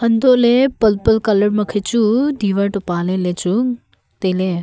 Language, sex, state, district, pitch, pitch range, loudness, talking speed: Wancho, female, Arunachal Pradesh, Longding, 210 Hz, 190-235 Hz, -16 LUFS, 195 wpm